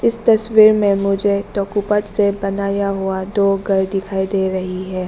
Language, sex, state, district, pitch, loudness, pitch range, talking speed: Hindi, female, Arunachal Pradesh, Lower Dibang Valley, 200 Hz, -17 LUFS, 195-205 Hz, 165 wpm